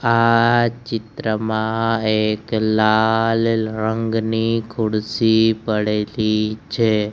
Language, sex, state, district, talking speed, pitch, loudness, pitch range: Gujarati, male, Gujarat, Gandhinagar, 65 wpm, 110 Hz, -19 LUFS, 110-115 Hz